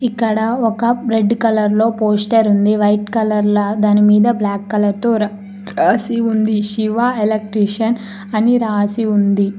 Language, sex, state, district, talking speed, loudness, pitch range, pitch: Telugu, female, Telangana, Mahabubabad, 120 wpm, -15 LUFS, 210-225 Hz, 215 Hz